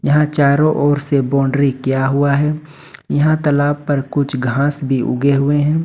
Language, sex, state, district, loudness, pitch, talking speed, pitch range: Hindi, male, Jharkhand, Ranchi, -16 LUFS, 145 Hz, 175 wpm, 140-145 Hz